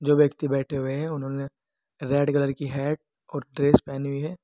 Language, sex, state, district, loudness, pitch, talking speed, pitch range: Hindi, male, Uttar Pradesh, Saharanpur, -25 LUFS, 145 Hz, 205 wpm, 140-150 Hz